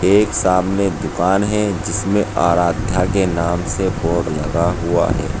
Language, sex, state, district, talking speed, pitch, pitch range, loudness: Hindi, male, Uttar Pradesh, Saharanpur, 145 wpm, 90 Hz, 85-100 Hz, -17 LUFS